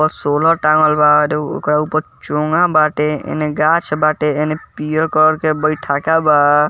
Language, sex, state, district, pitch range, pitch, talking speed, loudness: Bhojpuri, male, Bihar, East Champaran, 150-155 Hz, 155 Hz, 150 wpm, -15 LUFS